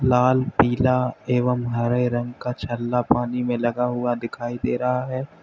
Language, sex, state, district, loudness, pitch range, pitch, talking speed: Hindi, male, Uttar Pradesh, Lalitpur, -23 LUFS, 120-125 Hz, 125 Hz, 165 wpm